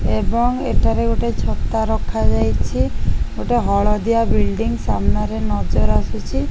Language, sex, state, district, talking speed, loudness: Odia, female, Odisha, Khordha, 120 wpm, -19 LUFS